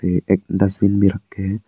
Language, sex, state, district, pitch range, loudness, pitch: Hindi, male, Arunachal Pradesh, Papum Pare, 95-100 Hz, -18 LUFS, 100 Hz